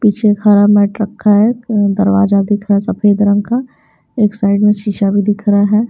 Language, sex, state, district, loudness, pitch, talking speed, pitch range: Hindi, female, Bihar, Patna, -12 LUFS, 205 Hz, 195 wpm, 205-210 Hz